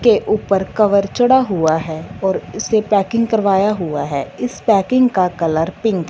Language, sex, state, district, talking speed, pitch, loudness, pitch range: Hindi, female, Punjab, Fazilka, 175 wpm, 200 Hz, -16 LUFS, 175-220 Hz